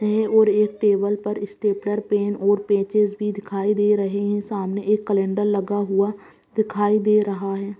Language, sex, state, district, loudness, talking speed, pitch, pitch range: Hindi, female, Bihar, Gaya, -21 LUFS, 175 wpm, 205 Hz, 200-210 Hz